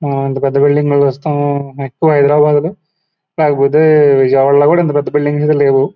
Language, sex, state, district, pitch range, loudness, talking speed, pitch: Telugu, male, Andhra Pradesh, Guntur, 140-150 Hz, -12 LUFS, 160 wpm, 145 Hz